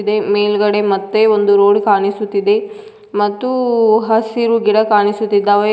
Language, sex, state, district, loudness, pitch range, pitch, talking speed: Kannada, female, Karnataka, Koppal, -14 LUFS, 205-230 Hz, 210 Hz, 105 wpm